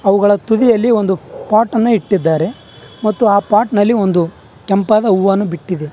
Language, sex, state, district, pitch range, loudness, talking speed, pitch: Kannada, male, Karnataka, Bangalore, 190-220 Hz, -14 LUFS, 140 wpm, 205 Hz